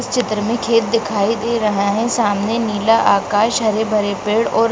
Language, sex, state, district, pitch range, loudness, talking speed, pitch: Hindi, female, Bihar, Bhagalpur, 210-230 Hz, -17 LUFS, 190 wpm, 220 Hz